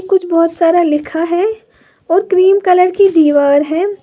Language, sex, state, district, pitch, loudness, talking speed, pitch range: Hindi, female, Uttar Pradesh, Lalitpur, 350 Hz, -12 LUFS, 165 wpm, 330-385 Hz